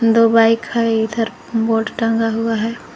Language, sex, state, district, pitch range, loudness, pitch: Hindi, female, Jharkhand, Garhwa, 225-230 Hz, -17 LUFS, 225 Hz